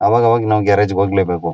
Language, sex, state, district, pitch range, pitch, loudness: Kannada, male, Karnataka, Mysore, 95-110 Hz, 100 Hz, -15 LUFS